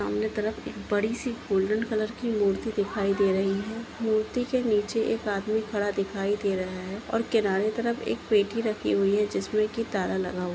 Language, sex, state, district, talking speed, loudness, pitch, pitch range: Hindi, female, Bihar, Madhepura, 205 wpm, -27 LUFS, 210 Hz, 195-225 Hz